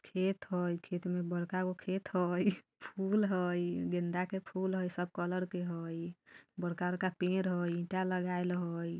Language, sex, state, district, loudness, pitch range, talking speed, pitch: Bajjika, female, Bihar, Vaishali, -36 LUFS, 175-185 Hz, 160 wpm, 180 Hz